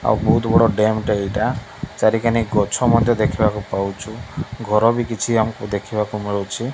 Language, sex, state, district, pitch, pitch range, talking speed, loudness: Odia, male, Odisha, Malkangiri, 110 Hz, 105-115 Hz, 150 wpm, -19 LUFS